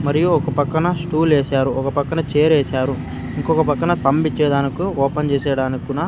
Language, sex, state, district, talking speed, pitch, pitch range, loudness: Telugu, male, Andhra Pradesh, Sri Satya Sai, 140 wpm, 145 Hz, 140-160 Hz, -18 LUFS